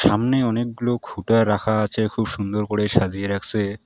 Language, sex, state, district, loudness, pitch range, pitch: Bengali, male, West Bengal, Alipurduar, -21 LUFS, 105-115 Hz, 105 Hz